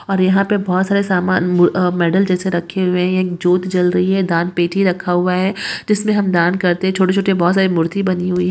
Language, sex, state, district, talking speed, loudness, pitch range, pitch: Hindi, female, West Bengal, Jalpaiguri, 240 wpm, -16 LUFS, 180-190 Hz, 185 Hz